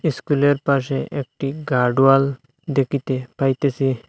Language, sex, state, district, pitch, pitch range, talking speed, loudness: Bengali, male, Assam, Hailakandi, 135 Hz, 135-145 Hz, 105 wpm, -20 LUFS